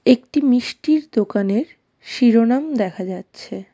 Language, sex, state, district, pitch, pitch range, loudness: Bengali, female, West Bengal, Darjeeling, 240 Hz, 205-265 Hz, -18 LUFS